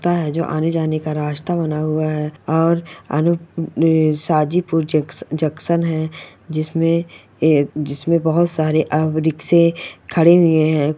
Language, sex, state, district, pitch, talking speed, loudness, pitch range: Angika, male, Bihar, Samastipur, 160 Hz, 110 wpm, -18 LUFS, 155-165 Hz